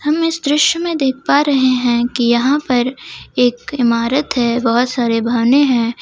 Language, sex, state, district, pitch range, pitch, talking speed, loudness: Hindi, female, Jharkhand, Ranchi, 240-290 Hz, 255 Hz, 180 wpm, -15 LUFS